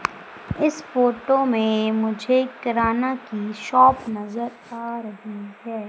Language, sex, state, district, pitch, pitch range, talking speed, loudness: Hindi, female, Madhya Pradesh, Umaria, 235 Hz, 220-255 Hz, 120 wpm, -22 LUFS